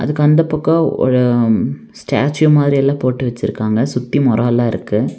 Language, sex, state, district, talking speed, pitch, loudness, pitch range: Tamil, female, Tamil Nadu, Nilgiris, 150 wpm, 130 Hz, -15 LUFS, 120-145 Hz